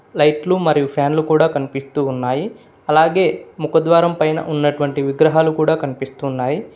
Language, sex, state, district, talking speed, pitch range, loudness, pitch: Telugu, male, Telangana, Hyderabad, 115 wpm, 140-160 Hz, -17 LUFS, 150 Hz